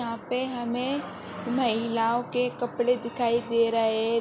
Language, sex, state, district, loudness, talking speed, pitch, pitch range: Hindi, female, Jharkhand, Sahebganj, -27 LUFS, 140 wpm, 240 Hz, 230-245 Hz